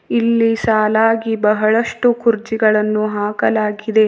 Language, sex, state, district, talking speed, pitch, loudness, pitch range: Kannada, female, Karnataka, Bidar, 75 wpm, 220 Hz, -16 LUFS, 215-225 Hz